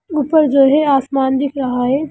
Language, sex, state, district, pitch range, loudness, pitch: Hindi, male, Bihar, Gaya, 265-295 Hz, -14 LUFS, 275 Hz